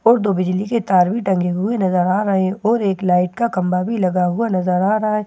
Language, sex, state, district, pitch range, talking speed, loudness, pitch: Hindi, female, Bihar, Katihar, 180-215 Hz, 275 wpm, -18 LUFS, 190 Hz